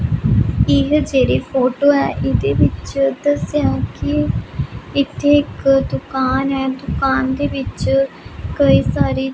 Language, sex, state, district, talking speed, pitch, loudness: Punjabi, female, Punjab, Pathankot, 120 wpm, 255 Hz, -17 LUFS